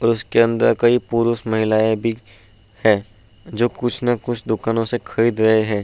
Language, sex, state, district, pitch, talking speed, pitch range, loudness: Hindi, male, Uttar Pradesh, Budaun, 115 Hz, 175 wpm, 110-115 Hz, -18 LUFS